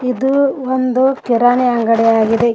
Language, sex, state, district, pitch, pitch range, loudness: Kannada, female, Karnataka, Koppal, 250 Hz, 235-260 Hz, -14 LUFS